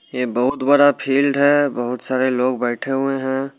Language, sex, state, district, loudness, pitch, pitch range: Hindi, male, Bihar, Muzaffarpur, -18 LUFS, 135 Hz, 125-140 Hz